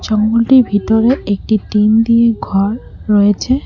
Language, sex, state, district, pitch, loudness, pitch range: Bengali, female, West Bengal, Cooch Behar, 220 Hz, -13 LUFS, 205-230 Hz